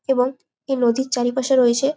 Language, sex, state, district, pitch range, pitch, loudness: Bengali, female, West Bengal, Jalpaiguri, 245-265 Hz, 260 Hz, -20 LUFS